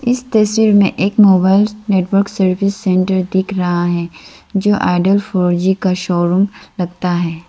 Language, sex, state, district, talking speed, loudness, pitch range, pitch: Hindi, female, Arunachal Pradesh, Lower Dibang Valley, 150 wpm, -14 LUFS, 180-200 Hz, 190 Hz